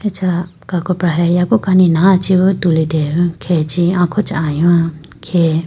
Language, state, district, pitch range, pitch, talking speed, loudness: Idu Mishmi, Arunachal Pradesh, Lower Dibang Valley, 165-185 Hz, 175 Hz, 150 wpm, -14 LUFS